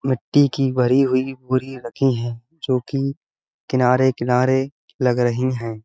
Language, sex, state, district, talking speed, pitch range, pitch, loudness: Hindi, male, Uttar Pradesh, Budaun, 125 wpm, 125-135 Hz, 130 Hz, -20 LUFS